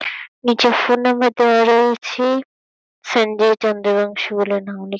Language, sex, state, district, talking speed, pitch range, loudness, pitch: Bengali, female, West Bengal, Kolkata, 120 wpm, 205-245 Hz, -17 LUFS, 230 Hz